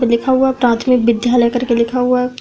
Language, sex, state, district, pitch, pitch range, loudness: Hindi, female, Uttar Pradesh, Budaun, 245 Hz, 235-250 Hz, -14 LUFS